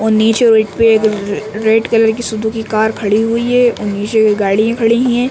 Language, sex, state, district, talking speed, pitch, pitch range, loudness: Hindi, male, Uttar Pradesh, Ghazipur, 180 wpm, 220 Hz, 215-230 Hz, -13 LUFS